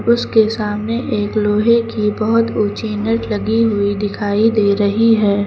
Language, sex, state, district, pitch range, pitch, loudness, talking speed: Hindi, female, Uttar Pradesh, Lucknow, 205-225 Hz, 215 Hz, -16 LUFS, 155 wpm